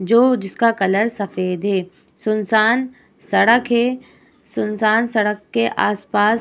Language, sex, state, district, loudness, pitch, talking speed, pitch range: Hindi, female, Uttar Pradesh, Muzaffarnagar, -18 LUFS, 215 Hz, 120 wpm, 200-235 Hz